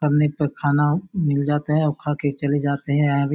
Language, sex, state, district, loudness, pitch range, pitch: Hindi, male, Chhattisgarh, Bastar, -21 LUFS, 145-150 Hz, 145 Hz